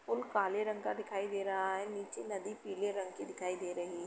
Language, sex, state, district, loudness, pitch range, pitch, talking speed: Hindi, female, Uttar Pradesh, Etah, -38 LUFS, 190-205 Hz, 195 Hz, 250 wpm